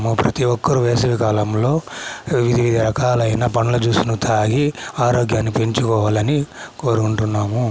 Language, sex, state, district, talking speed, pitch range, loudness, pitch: Telugu, male, Andhra Pradesh, Chittoor, 125 wpm, 110-125 Hz, -18 LUFS, 120 Hz